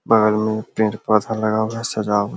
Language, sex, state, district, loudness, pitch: Hindi, male, Bihar, Sitamarhi, -20 LUFS, 110 Hz